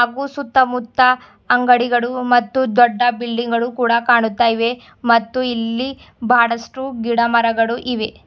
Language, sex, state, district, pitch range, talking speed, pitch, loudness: Kannada, female, Karnataka, Bidar, 235-250 Hz, 115 wpm, 240 Hz, -17 LUFS